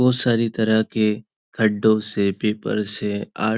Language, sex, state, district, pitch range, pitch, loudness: Hindi, male, Maharashtra, Nagpur, 105-110 Hz, 110 Hz, -20 LUFS